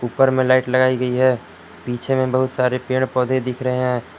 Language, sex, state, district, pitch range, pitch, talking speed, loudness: Hindi, male, Jharkhand, Palamu, 125-130 Hz, 130 Hz, 215 wpm, -19 LUFS